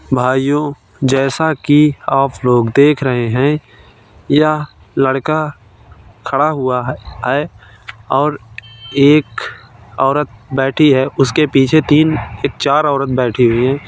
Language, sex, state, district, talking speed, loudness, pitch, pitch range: Hindi, male, Uttar Pradesh, Varanasi, 115 wpm, -14 LUFS, 135 Hz, 120-150 Hz